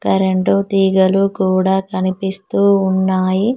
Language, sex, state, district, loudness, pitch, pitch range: Telugu, female, Telangana, Mahabubabad, -15 LUFS, 190 Hz, 190-195 Hz